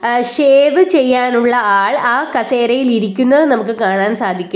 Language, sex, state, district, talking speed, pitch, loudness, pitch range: Malayalam, female, Kerala, Kollam, 130 wpm, 240 Hz, -12 LUFS, 225-260 Hz